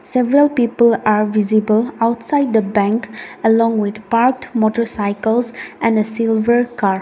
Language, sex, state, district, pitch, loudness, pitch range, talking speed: English, female, Nagaland, Kohima, 230 Hz, -16 LUFS, 215-235 Hz, 135 wpm